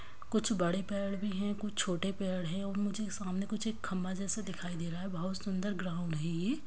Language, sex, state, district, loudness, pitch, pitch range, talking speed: Hindi, female, Bihar, Kishanganj, -36 LUFS, 195 Hz, 185-205 Hz, 225 wpm